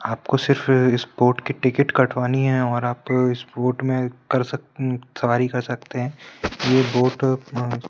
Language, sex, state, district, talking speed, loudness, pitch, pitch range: Hindi, male, Madhya Pradesh, Bhopal, 150 wpm, -21 LUFS, 125 Hz, 125-130 Hz